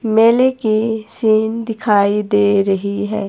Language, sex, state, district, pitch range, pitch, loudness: Hindi, female, Himachal Pradesh, Shimla, 205-225 Hz, 215 Hz, -15 LUFS